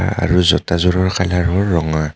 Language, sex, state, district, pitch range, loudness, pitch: Assamese, male, Assam, Kamrup Metropolitan, 85-95 Hz, -16 LUFS, 90 Hz